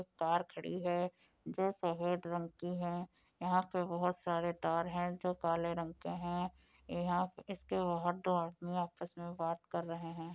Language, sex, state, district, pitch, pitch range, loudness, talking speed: Hindi, female, Uttar Pradesh, Budaun, 175 Hz, 170-180 Hz, -38 LUFS, 180 wpm